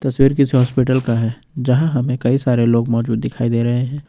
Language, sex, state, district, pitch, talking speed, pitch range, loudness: Hindi, male, Jharkhand, Ranchi, 125 Hz, 220 wpm, 120-135 Hz, -17 LUFS